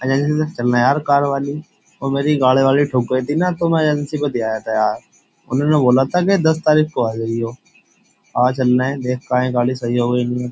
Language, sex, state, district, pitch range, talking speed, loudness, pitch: Hindi, male, Uttar Pradesh, Jyotiba Phule Nagar, 125-150 Hz, 230 wpm, -17 LUFS, 135 Hz